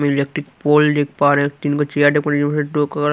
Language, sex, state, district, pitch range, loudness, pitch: Hindi, male, Haryana, Rohtak, 145-150 Hz, -17 LUFS, 145 Hz